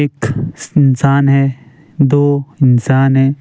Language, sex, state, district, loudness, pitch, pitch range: Hindi, male, Himachal Pradesh, Shimla, -13 LUFS, 140 Hz, 135-145 Hz